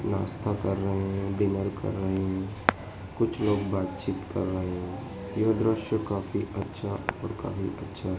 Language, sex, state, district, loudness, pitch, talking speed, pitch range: Hindi, male, Madhya Pradesh, Dhar, -30 LUFS, 100 Hz, 160 wpm, 95-105 Hz